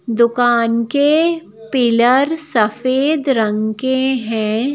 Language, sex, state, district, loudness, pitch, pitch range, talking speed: Hindi, female, Madhya Pradesh, Bhopal, -15 LUFS, 245 Hz, 225-275 Hz, 90 wpm